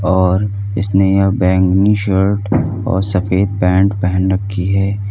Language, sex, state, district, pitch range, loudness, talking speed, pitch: Hindi, male, Uttar Pradesh, Lalitpur, 95-100 Hz, -15 LUFS, 130 wpm, 95 Hz